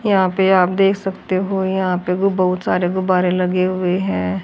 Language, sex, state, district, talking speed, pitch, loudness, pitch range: Hindi, female, Haryana, Charkhi Dadri, 205 wpm, 185 Hz, -17 LUFS, 180-190 Hz